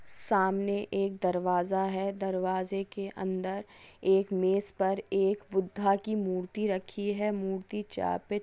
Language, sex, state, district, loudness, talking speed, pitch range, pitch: Hindi, female, West Bengal, Dakshin Dinajpur, -31 LUFS, 135 wpm, 190-205 Hz, 195 Hz